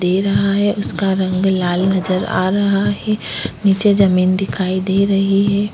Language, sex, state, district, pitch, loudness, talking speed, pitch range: Hindi, female, Goa, North and South Goa, 195 Hz, -16 LUFS, 165 wpm, 185-200 Hz